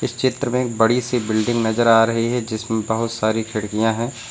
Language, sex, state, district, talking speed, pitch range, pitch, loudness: Hindi, male, Uttar Pradesh, Lucknow, 195 wpm, 110-120 Hz, 115 Hz, -19 LUFS